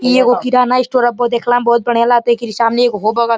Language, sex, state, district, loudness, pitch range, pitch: Bhojpuri, male, Uttar Pradesh, Deoria, -13 LUFS, 235-245 Hz, 240 Hz